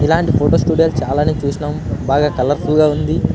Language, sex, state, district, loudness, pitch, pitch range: Telugu, male, Andhra Pradesh, Anantapur, -15 LUFS, 150 Hz, 140-160 Hz